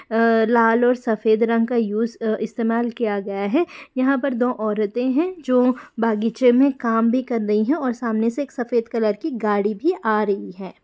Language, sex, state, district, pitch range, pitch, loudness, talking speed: Hindi, female, Bihar, Jamui, 220-255 Hz, 230 Hz, -20 LUFS, 200 wpm